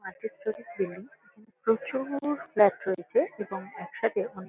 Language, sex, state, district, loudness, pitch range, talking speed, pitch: Bengali, female, West Bengal, Kolkata, -29 LUFS, 190-255 Hz, 105 wpm, 215 Hz